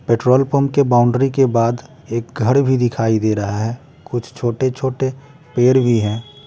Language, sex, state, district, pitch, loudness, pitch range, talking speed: Hindi, male, Bihar, West Champaran, 125 Hz, -17 LUFS, 115-135 Hz, 175 wpm